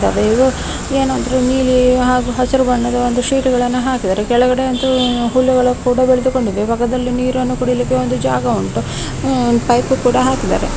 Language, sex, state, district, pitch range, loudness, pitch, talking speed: Kannada, female, Karnataka, Bellary, 240-255 Hz, -15 LUFS, 250 Hz, 140 wpm